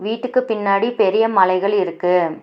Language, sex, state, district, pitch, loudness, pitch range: Tamil, female, Tamil Nadu, Nilgiris, 200 Hz, -17 LUFS, 185-225 Hz